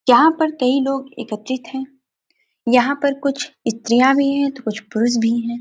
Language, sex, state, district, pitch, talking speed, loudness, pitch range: Hindi, female, Bihar, Gopalganj, 265 Hz, 180 wpm, -18 LUFS, 235-280 Hz